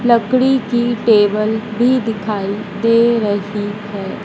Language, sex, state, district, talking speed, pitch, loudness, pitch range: Hindi, female, Madhya Pradesh, Dhar, 115 wpm, 220 Hz, -16 LUFS, 205-235 Hz